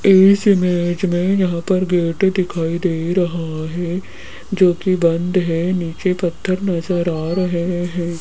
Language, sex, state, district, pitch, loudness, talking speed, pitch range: Hindi, female, Rajasthan, Jaipur, 175 Hz, -18 LUFS, 145 wpm, 170-185 Hz